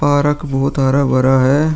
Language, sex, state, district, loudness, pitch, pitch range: Hindi, male, Uttar Pradesh, Muzaffarnagar, -14 LUFS, 140 Hz, 130-145 Hz